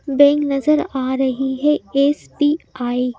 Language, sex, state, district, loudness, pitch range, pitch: Hindi, female, Madhya Pradesh, Bhopal, -18 LUFS, 265-295 Hz, 275 Hz